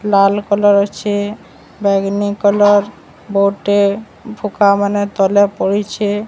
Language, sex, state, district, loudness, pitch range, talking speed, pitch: Odia, male, Odisha, Sambalpur, -14 LUFS, 200-205 Hz, 105 wpm, 205 Hz